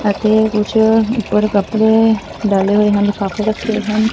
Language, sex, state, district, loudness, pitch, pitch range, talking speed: Punjabi, female, Punjab, Fazilka, -14 LUFS, 215 Hz, 205-220 Hz, 145 wpm